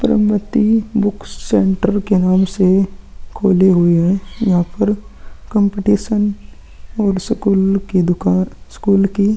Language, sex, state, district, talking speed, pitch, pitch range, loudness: Hindi, male, Uttarakhand, Tehri Garhwal, 120 wpm, 200 Hz, 190-210 Hz, -15 LUFS